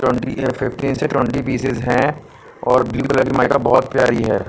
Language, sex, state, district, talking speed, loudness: Hindi, male, Punjab, Pathankot, 160 wpm, -17 LUFS